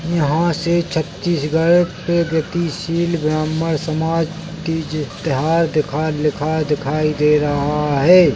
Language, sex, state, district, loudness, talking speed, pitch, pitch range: Hindi, male, Chhattisgarh, Bilaspur, -18 LUFS, 100 wpm, 160 Hz, 150-170 Hz